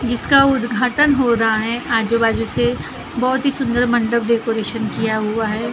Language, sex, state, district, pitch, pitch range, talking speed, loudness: Hindi, female, Maharashtra, Gondia, 235 Hz, 225-250 Hz, 165 wpm, -17 LUFS